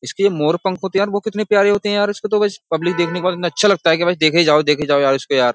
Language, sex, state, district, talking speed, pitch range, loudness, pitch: Hindi, male, Uttar Pradesh, Jyotiba Phule Nagar, 325 wpm, 155-205 Hz, -16 LUFS, 180 Hz